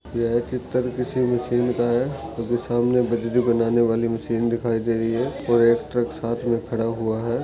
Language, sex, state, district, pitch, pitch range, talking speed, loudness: Hindi, male, Maharashtra, Chandrapur, 120 Hz, 115-125 Hz, 185 wpm, -22 LUFS